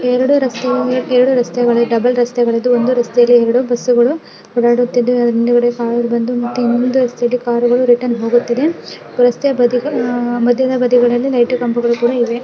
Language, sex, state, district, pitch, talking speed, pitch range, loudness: Kannada, female, Karnataka, Belgaum, 245 Hz, 110 wpm, 240-250 Hz, -14 LUFS